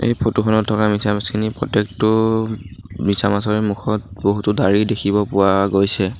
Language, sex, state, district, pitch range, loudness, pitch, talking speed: Assamese, male, Assam, Sonitpur, 100-110 Hz, -18 LUFS, 105 Hz, 105 wpm